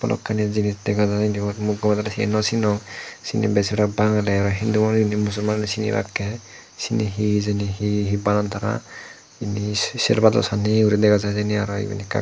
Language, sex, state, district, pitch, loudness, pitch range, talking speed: Chakma, male, Tripura, Dhalai, 105 Hz, -21 LUFS, 105-110 Hz, 145 wpm